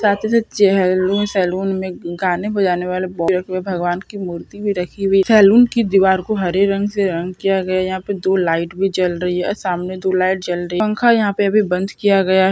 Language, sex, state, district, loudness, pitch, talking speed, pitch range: Hindi, male, Andhra Pradesh, Guntur, -17 LUFS, 190 Hz, 280 wpm, 180-200 Hz